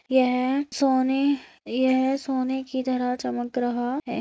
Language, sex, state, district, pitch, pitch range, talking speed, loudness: Hindi, female, Uttarakhand, Tehri Garhwal, 260 Hz, 250-265 Hz, 130 wpm, -25 LUFS